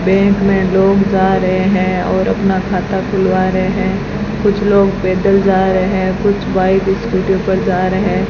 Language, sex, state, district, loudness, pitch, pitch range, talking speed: Hindi, female, Rajasthan, Bikaner, -14 LUFS, 190 Hz, 185-195 Hz, 175 wpm